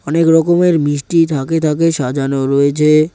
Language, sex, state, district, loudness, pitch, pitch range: Bengali, male, West Bengal, Cooch Behar, -13 LUFS, 155 Hz, 140-165 Hz